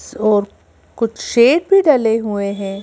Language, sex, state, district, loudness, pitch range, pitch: Hindi, female, Madhya Pradesh, Bhopal, -15 LUFS, 200-255 Hz, 225 Hz